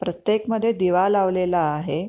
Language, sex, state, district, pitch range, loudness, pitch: Marathi, female, Maharashtra, Pune, 175-205 Hz, -21 LUFS, 185 Hz